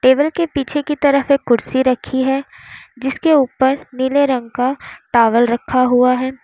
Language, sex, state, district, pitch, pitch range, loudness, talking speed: Hindi, female, Uttar Pradesh, Lalitpur, 265 Hz, 250-280 Hz, -16 LUFS, 170 wpm